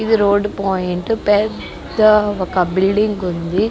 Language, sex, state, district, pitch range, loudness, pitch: Telugu, female, Andhra Pradesh, Guntur, 185-210 Hz, -16 LUFS, 205 Hz